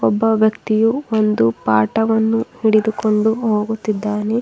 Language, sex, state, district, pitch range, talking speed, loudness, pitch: Kannada, female, Karnataka, Bidar, 210-225 Hz, 80 wpm, -17 LUFS, 220 Hz